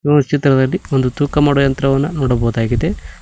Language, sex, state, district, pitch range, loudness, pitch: Kannada, male, Karnataka, Koppal, 130-145 Hz, -15 LUFS, 140 Hz